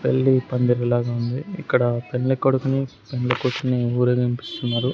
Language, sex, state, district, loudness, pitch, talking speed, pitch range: Telugu, male, Andhra Pradesh, Sri Satya Sai, -22 LUFS, 125 Hz, 135 wpm, 120-130 Hz